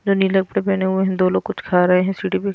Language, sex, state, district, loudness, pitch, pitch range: Hindi, female, Himachal Pradesh, Shimla, -18 LUFS, 190 Hz, 185-195 Hz